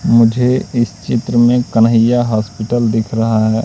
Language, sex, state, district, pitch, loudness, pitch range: Hindi, male, Madhya Pradesh, Katni, 115 Hz, -14 LUFS, 110-120 Hz